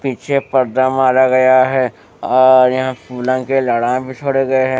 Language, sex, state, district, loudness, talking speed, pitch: Hindi, male, Bihar, West Champaran, -14 LUFS, 175 wpm, 130 Hz